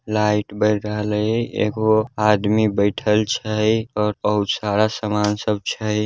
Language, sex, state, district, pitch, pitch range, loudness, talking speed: Hindi, male, Bihar, Darbhanga, 105 Hz, 105-110 Hz, -20 LUFS, 150 wpm